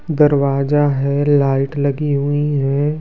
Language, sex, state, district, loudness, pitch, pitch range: Hindi, male, Bihar, Kaimur, -16 LUFS, 145 Hz, 140-145 Hz